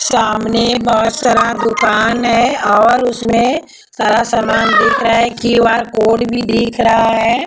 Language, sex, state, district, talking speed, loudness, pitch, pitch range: Hindi, female, Maharashtra, Mumbai Suburban, 145 wpm, -12 LUFS, 230 Hz, 225-240 Hz